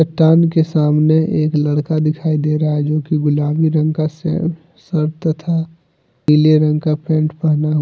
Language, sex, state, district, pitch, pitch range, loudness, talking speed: Hindi, male, Jharkhand, Deoghar, 155 Hz, 150-160 Hz, -16 LUFS, 170 wpm